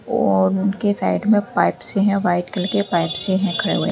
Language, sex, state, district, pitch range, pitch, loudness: Hindi, female, Uttar Pradesh, Lalitpur, 175-205 Hz, 195 Hz, -19 LUFS